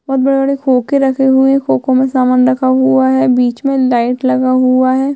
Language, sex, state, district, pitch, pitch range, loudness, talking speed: Hindi, female, Chhattisgarh, Sukma, 260 Hz, 255-270 Hz, -12 LUFS, 210 wpm